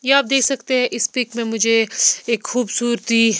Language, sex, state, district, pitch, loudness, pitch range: Hindi, female, Punjab, Pathankot, 235 Hz, -18 LUFS, 230-255 Hz